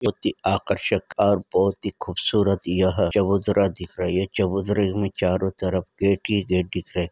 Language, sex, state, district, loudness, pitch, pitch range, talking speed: Hindi, female, Maharashtra, Nagpur, -23 LUFS, 95 Hz, 90-100 Hz, 195 wpm